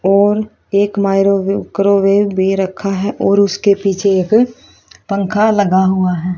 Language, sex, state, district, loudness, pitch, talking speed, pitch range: Hindi, female, Haryana, Rohtak, -14 LUFS, 200 Hz, 150 wpm, 195-205 Hz